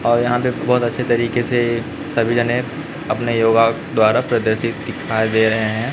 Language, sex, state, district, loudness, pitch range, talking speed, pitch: Hindi, male, Chhattisgarh, Raipur, -18 LUFS, 115-120 Hz, 170 wpm, 120 Hz